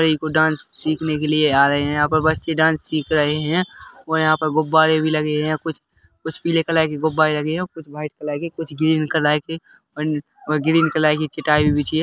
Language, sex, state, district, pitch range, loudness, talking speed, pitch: Hindi, male, Chhattisgarh, Rajnandgaon, 150-160 Hz, -19 LUFS, 220 wpm, 155 Hz